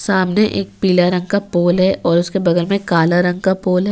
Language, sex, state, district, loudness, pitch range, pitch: Hindi, female, Jharkhand, Ranchi, -16 LUFS, 175-195 Hz, 180 Hz